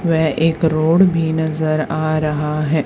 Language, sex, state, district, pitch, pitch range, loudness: Hindi, female, Haryana, Charkhi Dadri, 155 Hz, 155-160 Hz, -17 LUFS